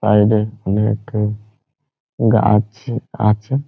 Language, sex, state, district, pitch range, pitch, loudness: Bengali, male, West Bengal, Jhargram, 105-125 Hz, 110 Hz, -17 LUFS